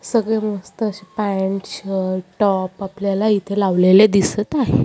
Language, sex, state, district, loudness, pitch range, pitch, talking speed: Marathi, female, Maharashtra, Chandrapur, -18 LUFS, 190-210 Hz, 200 Hz, 135 wpm